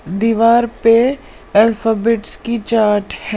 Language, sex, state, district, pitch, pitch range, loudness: Hindi, female, Punjab, Pathankot, 225 Hz, 215-230 Hz, -14 LUFS